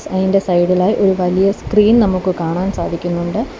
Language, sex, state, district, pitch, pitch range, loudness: Malayalam, female, Kerala, Kollam, 190 Hz, 180-200 Hz, -15 LUFS